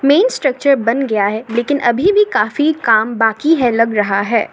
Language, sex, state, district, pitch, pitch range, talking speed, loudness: Hindi, female, Assam, Sonitpur, 240 Hz, 220-285 Hz, 200 wpm, -14 LUFS